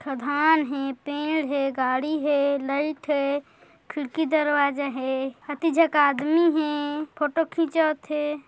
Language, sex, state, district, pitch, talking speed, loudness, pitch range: Hindi, female, Chhattisgarh, Korba, 295 Hz, 120 wpm, -24 LUFS, 280-310 Hz